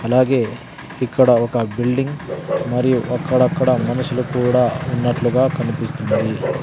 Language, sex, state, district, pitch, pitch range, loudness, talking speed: Telugu, male, Andhra Pradesh, Sri Satya Sai, 125 Hz, 120-130 Hz, -18 LUFS, 90 wpm